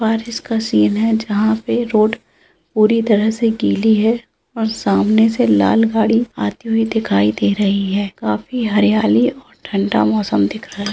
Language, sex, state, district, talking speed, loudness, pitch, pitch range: Hindi, female, Andhra Pradesh, Anantapur, 160 wpm, -16 LUFS, 220 Hz, 200-225 Hz